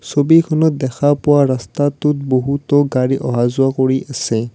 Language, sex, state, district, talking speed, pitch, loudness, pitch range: Assamese, male, Assam, Kamrup Metropolitan, 130 wpm, 135 Hz, -15 LUFS, 130-145 Hz